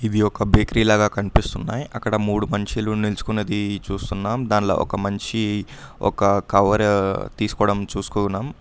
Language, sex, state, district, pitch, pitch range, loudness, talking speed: Telugu, male, Karnataka, Bangalore, 105 Hz, 100-105 Hz, -21 LUFS, 125 wpm